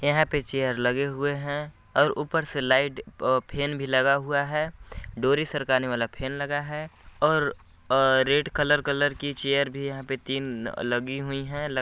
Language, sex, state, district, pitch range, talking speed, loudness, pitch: Hindi, male, Chhattisgarh, Balrampur, 130-145 Hz, 190 wpm, -26 LUFS, 140 Hz